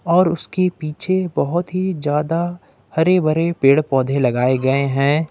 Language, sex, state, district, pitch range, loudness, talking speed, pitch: Hindi, male, Jharkhand, Ranchi, 140-175 Hz, -18 LUFS, 145 wpm, 160 Hz